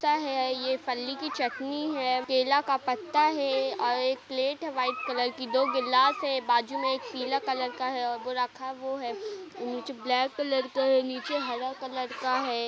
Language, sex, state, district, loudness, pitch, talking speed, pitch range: Hindi, female, Uttar Pradesh, Jalaun, -29 LUFS, 260 Hz, 205 wpm, 255-275 Hz